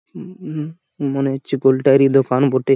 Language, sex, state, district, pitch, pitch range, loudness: Bengali, male, West Bengal, Malda, 135 Hz, 135-150 Hz, -17 LUFS